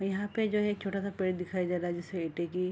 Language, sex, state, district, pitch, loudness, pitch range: Hindi, female, Bihar, Araria, 185 Hz, -33 LUFS, 180-200 Hz